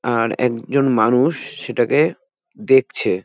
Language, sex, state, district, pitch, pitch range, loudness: Bengali, male, West Bengal, North 24 Parganas, 130 Hz, 120-140 Hz, -18 LUFS